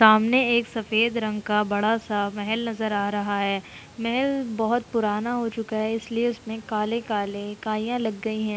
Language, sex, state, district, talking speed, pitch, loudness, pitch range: Hindi, female, Uttar Pradesh, Jalaun, 175 wpm, 220 Hz, -25 LUFS, 210-230 Hz